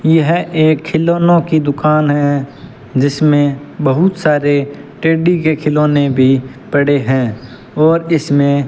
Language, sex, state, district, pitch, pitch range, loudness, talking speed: Hindi, male, Rajasthan, Bikaner, 145 Hz, 140-160 Hz, -13 LUFS, 125 wpm